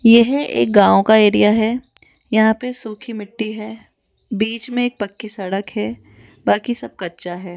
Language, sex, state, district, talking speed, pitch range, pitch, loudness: Hindi, female, Rajasthan, Jaipur, 165 wpm, 175-225 Hz, 215 Hz, -17 LUFS